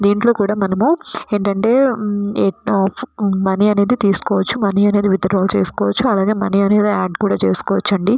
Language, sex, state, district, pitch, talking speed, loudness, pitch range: Telugu, female, Andhra Pradesh, Srikakulam, 205 Hz, 105 wpm, -16 LUFS, 195-215 Hz